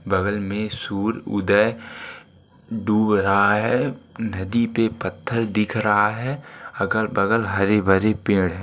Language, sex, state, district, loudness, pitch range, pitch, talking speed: Hindi, male, Uttarakhand, Uttarkashi, -21 LUFS, 100-110 Hz, 105 Hz, 130 wpm